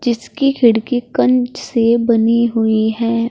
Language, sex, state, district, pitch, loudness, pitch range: Hindi, female, Uttar Pradesh, Saharanpur, 235 Hz, -15 LUFS, 230-245 Hz